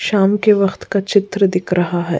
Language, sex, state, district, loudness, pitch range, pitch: Hindi, female, Goa, North and South Goa, -16 LUFS, 180-200 Hz, 195 Hz